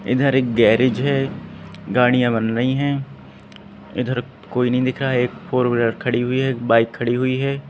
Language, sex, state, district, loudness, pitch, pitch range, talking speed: Hindi, male, Madhya Pradesh, Katni, -19 LUFS, 125 Hz, 120-130 Hz, 185 wpm